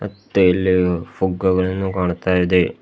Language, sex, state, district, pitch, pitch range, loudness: Kannada, male, Karnataka, Bidar, 95 Hz, 90-95 Hz, -18 LUFS